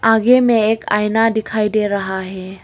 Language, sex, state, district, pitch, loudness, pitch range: Hindi, female, Arunachal Pradesh, Longding, 215 Hz, -16 LUFS, 200-225 Hz